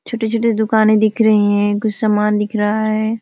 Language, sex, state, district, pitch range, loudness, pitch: Hindi, female, Uttar Pradesh, Ghazipur, 210-220 Hz, -15 LUFS, 215 Hz